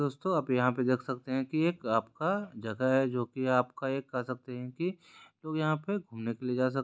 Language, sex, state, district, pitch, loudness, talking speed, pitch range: Hindi, male, Bihar, Jahanabad, 130 Hz, -32 LUFS, 245 wpm, 125-155 Hz